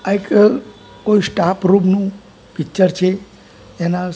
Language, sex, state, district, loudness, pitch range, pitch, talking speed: Gujarati, male, Gujarat, Gandhinagar, -16 LUFS, 180-200 Hz, 195 Hz, 130 wpm